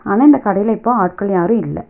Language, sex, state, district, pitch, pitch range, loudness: Tamil, female, Tamil Nadu, Nilgiris, 210 Hz, 200-235 Hz, -14 LUFS